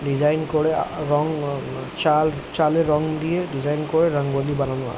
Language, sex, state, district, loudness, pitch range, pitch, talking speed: Bengali, male, West Bengal, Jhargram, -22 LUFS, 145-155 Hz, 150 Hz, 180 wpm